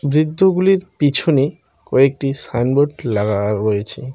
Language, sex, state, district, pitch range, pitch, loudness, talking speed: Bengali, male, West Bengal, Cooch Behar, 120-155 Hz, 140 Hz, -17 LUFS, 85 wpm